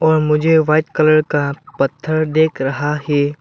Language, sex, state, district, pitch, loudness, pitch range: Hindi, male, Arunachal Pradesh, Lower Dibang Valley, 155 Hz, -16 LUFS, 145-155 Hz